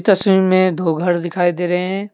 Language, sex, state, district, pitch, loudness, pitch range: Hindi, male, Jharkhand, Deoghar, 180 Hz, -16 LUFS, 175-190 Hz